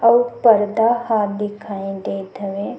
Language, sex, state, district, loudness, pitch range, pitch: Chhattisgarhi, female, Chhattisgarh, Sukma, -19 LUFS, 200-230 Hz, 210 Hz